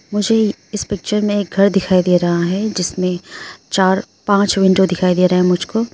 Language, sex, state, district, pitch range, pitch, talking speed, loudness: Hindi, female, Arunachal Pradesh, Lower Dibang Valley, 180-205 Hz, 190 Hz, 190 wpm, -16 LUFS